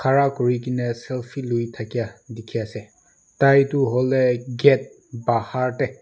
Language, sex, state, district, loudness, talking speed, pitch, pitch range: Nagamese, male, Nagaland, Dimapur, -21 LUFS, 120 wpm, 125 Hz, 115-135 Hz